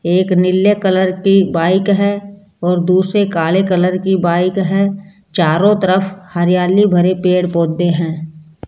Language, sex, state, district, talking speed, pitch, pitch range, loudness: Hindi, female, Rajasthan, Jaipur, 140 wpm, 185 Hz, 175-195 Hz, -14 LUFS